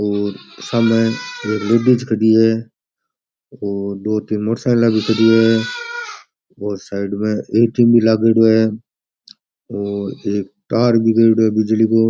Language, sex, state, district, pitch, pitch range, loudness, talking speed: Rajasthani, male, Rajasthan, Nagaur, 110 Hz, 105-115 Hz, -16 LUFS, 140 wpm